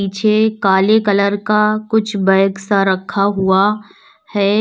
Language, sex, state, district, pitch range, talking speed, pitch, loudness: Hindi, female, Uttar Pradesh, Lalitpur, 195-215 Hz, 130 wpm, 200 Hz, -15 LUFS